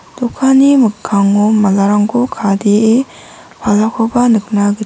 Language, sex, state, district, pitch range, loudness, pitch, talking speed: Garo, female, Meghalaya, West Garo Hills, 205-245 Hz, -12 LUFS, 215 Hz, 85 wpm